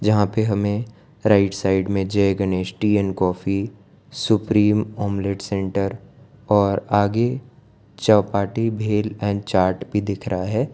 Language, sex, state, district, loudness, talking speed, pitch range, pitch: Hindi, male, Gujarat, Valsad, -21 LUFS, 135 wpm, 100-110 Hz, 105 Hz